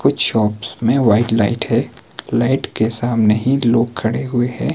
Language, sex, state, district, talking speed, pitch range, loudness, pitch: Hindi, male, Himachal Pradesh, Shimla, 175 wpm, 110-120 Hz, -17 LUFS, 115 Hz